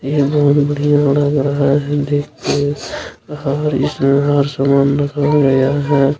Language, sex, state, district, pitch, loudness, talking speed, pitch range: Hindi, male, Bihar, Araria, 145 Hz, -15 LUFS, 145 wpm, 140-145 Hz